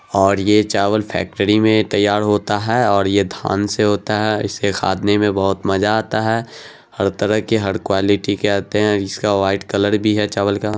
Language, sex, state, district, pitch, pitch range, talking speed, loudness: Hindi, male, Bihar, Araria, 105 Hz, 100-105 Hz, 200 wpm, -17 LUFS